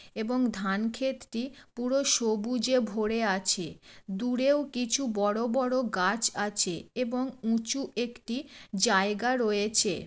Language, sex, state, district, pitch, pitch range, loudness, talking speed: Bengali, female, West Bengal, Jalpaiguri, 235 Hz, 210-255 Hz, -29 LUFS, 105 wpm